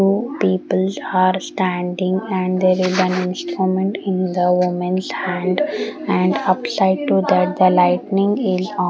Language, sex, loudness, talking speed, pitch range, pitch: English, female, -18 LUFS, 135 wpm, 180-190 Hz, 185 Hz